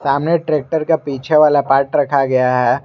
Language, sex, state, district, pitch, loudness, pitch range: Hindi, male, Jharkhand, Garhwa, 140 Hz, -15 LUFS, 135-155 Hz